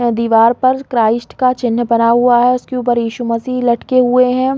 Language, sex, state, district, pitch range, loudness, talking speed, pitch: Hindi, female, Chhattisgarh, Raigarh, 235-255 Hz, -13 LUFS, 195 wpm, 240 Hz